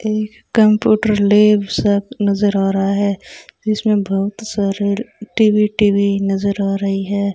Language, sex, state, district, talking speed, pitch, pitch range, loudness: Hindi, female, Rajasthan, Bikaner, 120 wpm, 205 Hz, 200-215 Hz, -16 LUFS